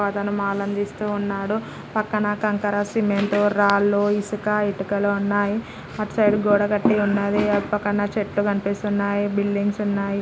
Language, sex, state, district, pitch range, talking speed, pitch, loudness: Telugu, female, Andhra Pradesh, Srikakulam, 200-210 Hz, 135 wpm, 205 Hz, -22 LUFS